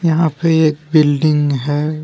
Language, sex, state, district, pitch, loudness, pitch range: Hindi, male, Jharkhand, Deoghar, 155 Hz, -15 LUFS, 150-160 Hz